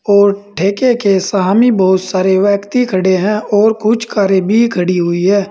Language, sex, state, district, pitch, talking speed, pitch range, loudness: Hindi, male, Uttar Pradesh, Saharanpur, 200 Hz, 175 wpm, 190-215 Hz, -12 LUFS